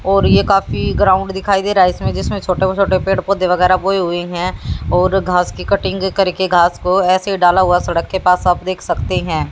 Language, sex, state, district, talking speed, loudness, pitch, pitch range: Hindi, female, Haryana, Jhajjar, 225 wpm, -15 LUFS, 185 Hz, 180-195 Hz